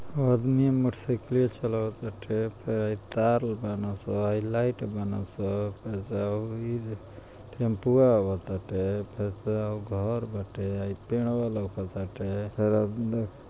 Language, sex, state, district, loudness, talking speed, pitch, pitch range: Bhojpuri, male, Uttar Pradesh, Ghazipur, -29 LUFS, 100 wpm, 105 Hz, 100-115 Hz